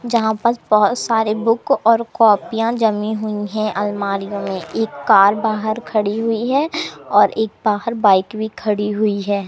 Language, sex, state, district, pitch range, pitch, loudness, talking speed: Hindi, female, Madhya Pradesh, Umaria, 205-230 Hz, 215 Hz, -17 LUFS, 165 wpm